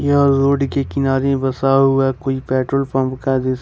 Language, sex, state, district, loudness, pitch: Hindi, male, Jharkhand, Ranchi, -17 LUFS, 135 Hz